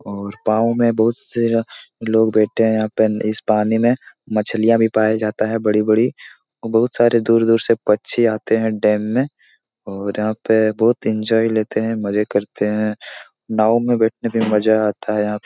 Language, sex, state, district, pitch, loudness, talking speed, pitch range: Hindi, male, Bihar, Supaul, 110 Hz, -18 LUFS, 180 wpm, 105-115 Hz